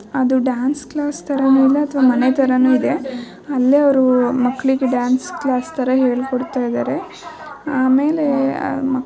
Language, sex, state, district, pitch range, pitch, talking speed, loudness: Kannada, female, Karnataka, Bijapur, 255-285 Hz, 265 Hz, 125 wpm, -17 LUFS